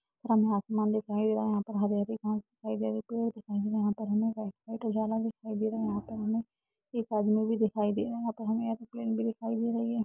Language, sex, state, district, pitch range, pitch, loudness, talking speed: Hindi, female, Uttar Pradesh, Jalaun, 210-225 Hz, 220 Hz, -32 LUFS, 295 wpm